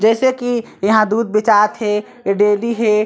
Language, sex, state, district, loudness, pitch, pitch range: Chhattisgarhi, female, Chhattisgarh, Sarguja, -16 LUFS, 215 Hz, 210-230 Hz